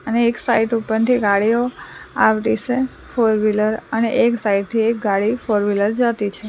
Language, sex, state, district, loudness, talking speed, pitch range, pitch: Gujarati, female, Gujarat, Valsad, -18 LUFS, 155 wpm, 210-235 Hz, 225 Hz